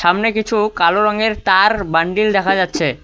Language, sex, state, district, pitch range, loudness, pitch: Bengali, male, West Bengal, Cooch Behar, 170-215 Hz, -15 LUFS, 195 Hz